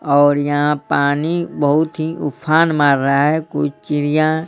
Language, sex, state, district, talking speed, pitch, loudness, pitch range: Hindi, male, Bihar, Patna, 160 wpm, 150 Hz, -16 LUFS, 145-155 Hz